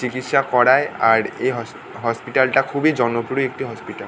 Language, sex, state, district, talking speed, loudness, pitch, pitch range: Bengali, male, West Bengal, North 24 Parganas, 175 wpm, -19 LUFS, 130 Hz, 120-135 Hz